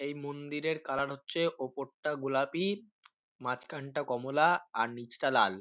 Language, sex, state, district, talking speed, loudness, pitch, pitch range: Bengali, male, West Bengal, North 24 Parganas, 120 wpm, -33 LUFS, 145 Hz, 135-155 Hz